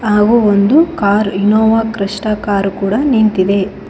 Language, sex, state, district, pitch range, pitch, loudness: Kannada, female, Karnataka, Koppal, 200-220 Hz, 210 Hz, -13 LUFS